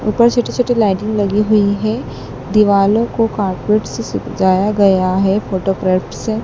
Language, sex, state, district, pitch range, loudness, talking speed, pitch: Hindi, female, Madhya Pradesh, Dhar, 190-215 Hz, -15 LUFS, 150 wpm, 205 Hz